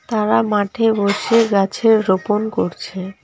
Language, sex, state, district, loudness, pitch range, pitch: Bengali, female, West Bengal, Alipurduar, -17 LUFS, 195-225 Hz, 210 Hz